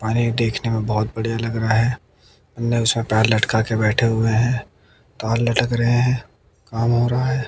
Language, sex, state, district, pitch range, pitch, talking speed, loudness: Hindi, male, Haryana, Jhajjar, 110-120 Hz, 115 Hz, 210 wpm, -20 LUFS